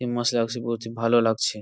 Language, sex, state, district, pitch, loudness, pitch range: Bengali, male, West Bengal, Purulia, 115 Hz, -24 LUFS, 115-120 Hz